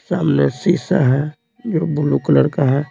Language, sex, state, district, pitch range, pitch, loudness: Hindi, male, Bihar, Patna, 135-160 Hz, 145 Hz, -17 LUFS